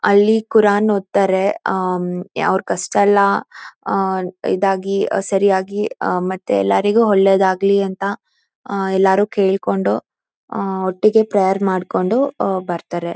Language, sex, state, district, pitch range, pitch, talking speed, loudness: Kannada, female, Karnataka, Mysore, 185-200 Hz, 195 Hz, 105 wpm, -17 LUFS